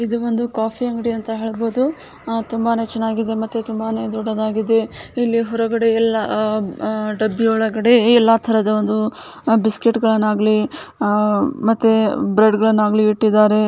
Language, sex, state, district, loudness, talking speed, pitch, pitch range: Kannada, female, Karnataka, Bijapur, -18 LUFS, 80 wpm, 225 Hz, 215-230 Hz